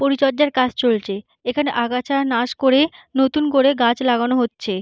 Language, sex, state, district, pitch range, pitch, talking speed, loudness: Bengali, female, West Bengal, Jhargram, 235-275 Hz, 255 Hz, 150 wpm, -18 LUFS